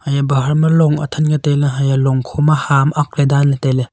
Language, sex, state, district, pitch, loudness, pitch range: Wancho, male, Arunachal Pradesh, Longding, 145 Hz, -14 LUFS, 135-150 Hz